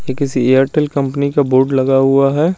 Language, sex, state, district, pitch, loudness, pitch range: Hindi, male, Chandigarh, Chandigarh, 135 Hz, -14 LUFS, 135-140 Hz